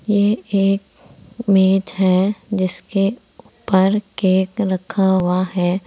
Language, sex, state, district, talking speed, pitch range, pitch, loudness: Hindi, female, Uttar Pradesh, Saharanpur, 100 wpm, 185-205 Hz, 195 Hz, -18 LUFS